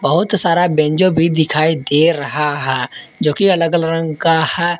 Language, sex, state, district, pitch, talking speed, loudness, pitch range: Hindi, male, Jharkhand, Palamu, 165 Hz, 185 wpm, -15 LUFS, 150-170 Hz